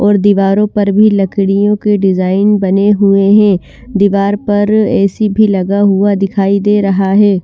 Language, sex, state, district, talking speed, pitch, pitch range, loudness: Hindi, female, Bihar, Patna, 160 wpm, 200 Hz, 195-205 Hz, -10 LUFS